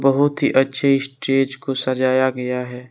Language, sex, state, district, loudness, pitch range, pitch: Hindi, male, Jharkhand, Deoghar, -19 LUFS, 130-135 Hz, 135 Hz